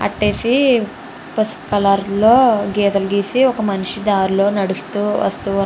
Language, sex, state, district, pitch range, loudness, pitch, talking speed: Telugu, female, Andhra Pradesh, Chittoor, 195-220 Hz, -16 LUFS, 205 Hz, 140 wpm